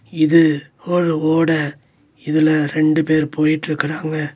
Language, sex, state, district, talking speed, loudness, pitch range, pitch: Tamil, male, Tamil Nadu, Nilgiris, 95 wpm, -17 LUFS, 155-160 Hz, 155 Hz